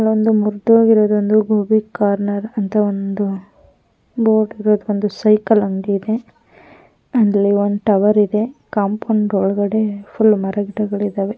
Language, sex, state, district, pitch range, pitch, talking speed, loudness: Kannada, female, Karnataka, Mysore, 205-220 Hz, 210 Hz, 115 wpm, -16 LUFS